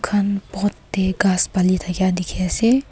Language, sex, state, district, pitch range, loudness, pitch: Nagamese, female, Nagaland, Kohima, 185-205 Hz, -20 LUFS, 190 Hz